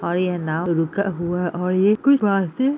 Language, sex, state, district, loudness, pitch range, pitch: Hindi, female, Jharkhand, Jamtara, -20 LUFS, 175-200 Hz, 180 Hz